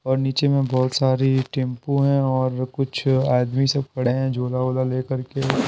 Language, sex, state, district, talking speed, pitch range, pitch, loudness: Hindi, male, Bihar, Patna, 180 wpm, 130-135 Hz, 130 Hz, -21 LUFS